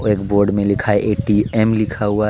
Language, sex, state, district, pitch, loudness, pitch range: Hindi, male, Jharkhand, Deoghar, 105 Hz, -17 LUFS, 100-110 Hz